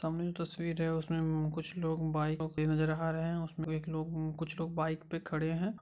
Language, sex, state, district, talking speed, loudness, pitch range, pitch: Hindi, male, Bihar, Madhepura, 215 wpm, -35 LUFS, 155-165 Hz, 160 Hz